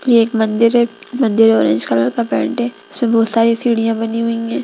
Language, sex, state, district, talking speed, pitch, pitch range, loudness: Hindi, female, Bihar, Gaya, 220 wpm, 230 Hz, 215-230 Hz, -15 LUFS